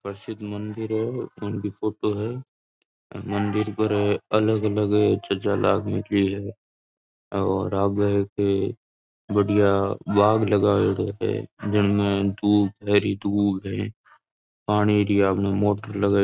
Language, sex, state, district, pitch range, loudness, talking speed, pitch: Marwari, male, Rajasthan, Nagaur, 100-105 Hz, -23 LUFS, 115 wpm, 105 Hz